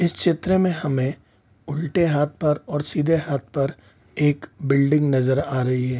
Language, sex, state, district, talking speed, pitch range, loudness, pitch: Hindi, male, Bihar, East Champaran, 170 wpm, 130-155 Hz, -22 LUFS, 145 Hz